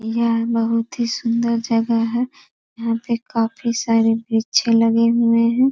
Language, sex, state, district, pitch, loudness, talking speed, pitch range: Hindi, female, Bihar, East Champaran, 230 Hz, -19 LUFS, 145 wpm, 230-235 Hz